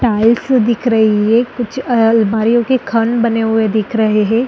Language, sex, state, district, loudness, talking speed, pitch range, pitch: Hindi, female, Chhattisgarh, Bastar, -13 LUFS, 175 wpm, 220-240 Hz, 230 Hz